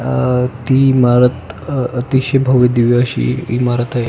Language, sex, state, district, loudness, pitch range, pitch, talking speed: Marathi, male, Maharashtra, Pune, -14 LUFS, 120-130 Hz, 125 Hz, 145 wpm